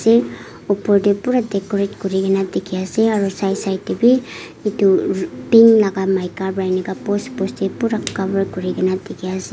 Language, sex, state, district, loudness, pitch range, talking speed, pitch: Nagamese, female, Nagaland, Kohima, -18 LUFS, 190-215 Hz, 170 wpm, 195 Hz